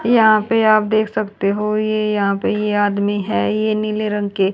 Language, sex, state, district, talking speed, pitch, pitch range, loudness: Hindi, female, Haryana, Jhajjar, 210 wpm, 210 Hz, 200-215 Hz, -17 LUFS